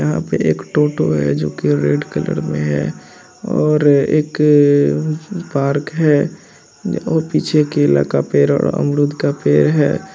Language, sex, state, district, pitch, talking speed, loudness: Hindi, male, Bihar, Lakhisarai, 140 Hz, 150 wpm, -16 LUFS